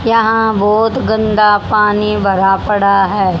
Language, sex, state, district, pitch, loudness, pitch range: Hindi, female, Haryana, Jhajjar, 210 Hz, -12 LUFS, 200-220 Hz